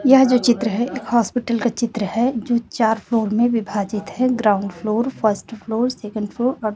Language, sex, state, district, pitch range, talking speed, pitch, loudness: Hindi, female, Chhattisgarh, Raipur, 215-245 Hz, 195 wpm, 230 Hz, -20 LUFS